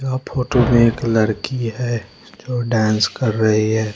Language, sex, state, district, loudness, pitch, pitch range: Hindi, male, Bihar, West Champaran, -18 LUFS, 115 Hz, 110-125 Hz